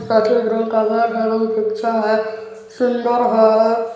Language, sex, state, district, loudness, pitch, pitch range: Hindi, male, Chhattisgarh, Balrampur, -17 LUFS, 225 Hz, 220-230 Hz